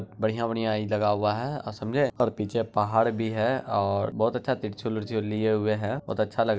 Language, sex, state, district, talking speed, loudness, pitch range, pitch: Hindi, male, Bihar, Araria, 245 wpm, -27 LUFS, 105-115 Hz, 110 Hz